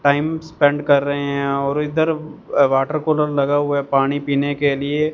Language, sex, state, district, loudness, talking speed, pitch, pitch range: Hindi, male, Punjab, Fazilka, -19 LUFS, 185 wpm, 145 Hz, 140-150 Hz